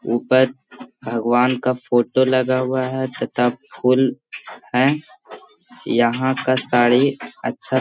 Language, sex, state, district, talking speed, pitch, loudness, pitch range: Hindi, male, Bihar, Gaya, 115 wpm, 130 Hz, -19 LUFS, 120-130 Hz